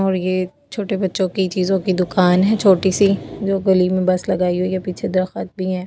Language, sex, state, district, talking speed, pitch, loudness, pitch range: Hindi, female, Delhi, New Delhi, 225 wpm, 185 Hz, -18 LUFS, 185-195 Hz